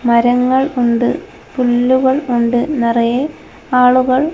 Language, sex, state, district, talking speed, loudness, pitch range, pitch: Malayalam, female, Kerala, Kozhikode, 85 wpm, -14 LUFS, 240-260 Hz, 250 Hz